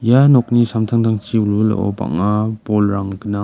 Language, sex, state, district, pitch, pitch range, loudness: Garo, male, Meghalaya, West Garo Hills, 110 Hz, 105-115 Hz, -16 LUFS